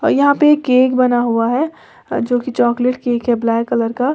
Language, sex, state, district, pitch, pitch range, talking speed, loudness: Hindi, female, Uttar Pradesh, Lalitpur, 250 Hz, 240-260 Hz, 200 wpm, -15 LUFS